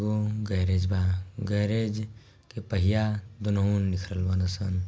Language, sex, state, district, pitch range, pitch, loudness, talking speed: Bhojpuri, male, Bihar, Gopalganj, 95-105 Hz, 100 Hz, -28 LUFS, 135 wpm